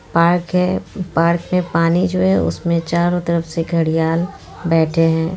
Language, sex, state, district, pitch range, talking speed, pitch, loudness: Hindi, female, Bihar, Muzaffarpur, 160-175 Hz, 155 wpm, 170 Hz, -17 LUFS